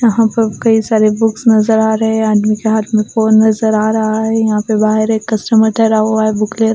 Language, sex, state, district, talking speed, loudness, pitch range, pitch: Hindi, female, Bihar, West Champaran, 240 wpm, -12 LUFS, 215-225 Hz, 220 Hz